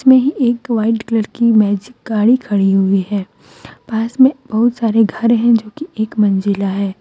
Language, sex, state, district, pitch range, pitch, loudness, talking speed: Hindi, female, Jharkhand, Deoghar, 205-240 Hz, 225 Hz, -15 LUFS, 160 wpm